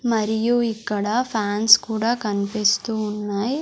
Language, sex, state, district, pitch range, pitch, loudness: Telugu, female, Andhra Pradesh, Sri Satya Sai, 210-230 Hz, 220 Hz, -21 LUFS